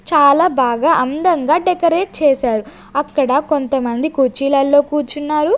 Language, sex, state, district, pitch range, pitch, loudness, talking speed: Telugu, female, Andhra Pradesh, Sri Satya Sai, 275-315 Hz, 290 Hz, -15 LUFS, 95 wpm